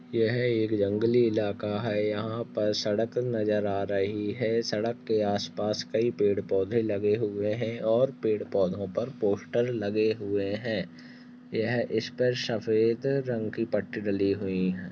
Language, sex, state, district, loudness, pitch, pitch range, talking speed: Hindi, male, Chhattisgarh, Rajnandgaon, -28 LUFS, 110 Hz, 105-115 Hz, 160 wpm